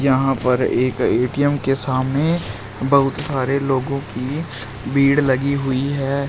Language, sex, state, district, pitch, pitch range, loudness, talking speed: Hindi, male, Uttar Pradesh, Shamli, 135 Hz, 130-140 Hz, -19 LUFS, 135 wpm